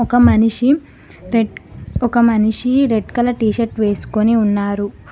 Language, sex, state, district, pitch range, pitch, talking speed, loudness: Telugu, female, Telangana, Mahabubabad, 215-240 Hz, 225 Hz, 115 wpm, -16 LUFS